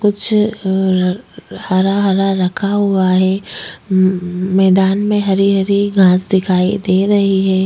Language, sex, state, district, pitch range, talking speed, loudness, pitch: Hindi, female, Uttarakhand, Tehri Garhwal, 185-200 Hz, 135 wpm, -14 LUFS, 190 Hz